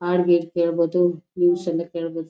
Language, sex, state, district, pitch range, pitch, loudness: Kannada, female, Karnataka, Shimoga, 170-175 Hz, 175 Hz, -21 LUFS